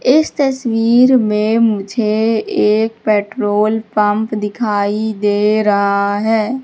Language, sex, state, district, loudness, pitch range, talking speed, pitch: Hindi, female, Madhya Pradesh, Katni, -14 LUFS, 210-230 Hz, 100 wpm, 215 Hz